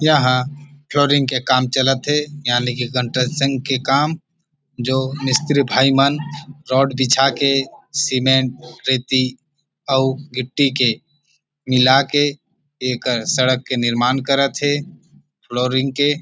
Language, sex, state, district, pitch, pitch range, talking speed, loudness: Chhattisgarhi, male, Chhattisgarh, Rajnandgaon, 135 Hz, 130-145 Hz, 120 wpm, -17 LUFS